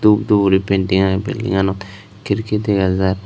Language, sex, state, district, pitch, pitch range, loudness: Chakma, male, Tripura, Unakoti, 100 Hz, 95-105 Hz, -17 LUFS